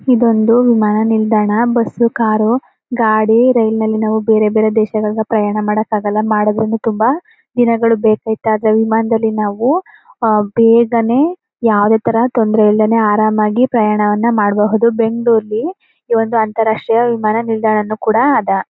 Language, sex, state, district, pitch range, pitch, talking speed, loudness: Kannada, female, Karnataka, Chamarajanagar, 215-235 Hz, 220 Hz, 120 wpm, -13 LUFS